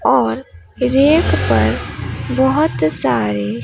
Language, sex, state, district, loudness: Hindi, female, Bihar, Katihar, -16 LUFS